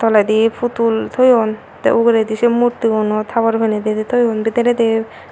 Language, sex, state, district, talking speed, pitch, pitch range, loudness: Chakma, female, Tripura, Unakoti, 135 wpm, 225 Hz, 220-235 Hz, -15 LUFS